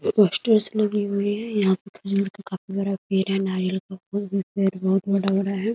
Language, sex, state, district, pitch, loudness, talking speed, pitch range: Hindi, female, Bihar, Muzaffarpur, 195 Hz, -22 LUFS, 165 wpm, 190-205 Hz